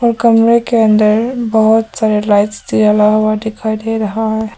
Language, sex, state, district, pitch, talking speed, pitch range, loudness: Hindi, female, Arunachal Pradesh, Papum Pare, 220 Hz, 170 wpm, 215-225 Hz, -12 LUFS